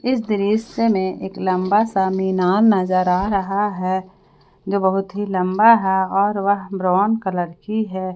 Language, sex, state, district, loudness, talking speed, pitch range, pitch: Hindi, female, Jharkhand, Palamu, -19 LUFS, 160 wpm, 185-205 Hz, 195 Hz